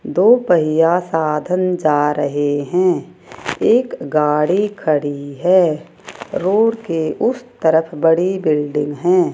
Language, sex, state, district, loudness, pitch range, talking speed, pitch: Hindi, female, Rajasthan, Jaipur, -16 LUFS, 150-185 Hz, 110 wpm, 165 Hz